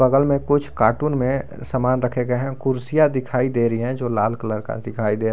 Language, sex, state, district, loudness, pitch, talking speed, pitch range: Hindi, male, Jharkhand, Garhwa, -21 LUFS, 125 Hz, 225 wpm, 115-135 Hz